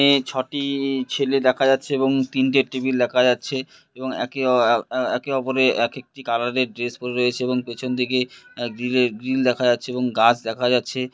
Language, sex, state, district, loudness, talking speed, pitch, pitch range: Bengali, male, West Bengal, Purulia, -21 LUFS, 150 wpm, 125 Hz, 125-135 Hz